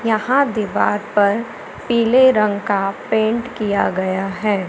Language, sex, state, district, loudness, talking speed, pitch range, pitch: Hindi, female, Madhya Pradesh, Umaria, -17 LUFS, 130 wpm, 200-230 Hz, 215 Hz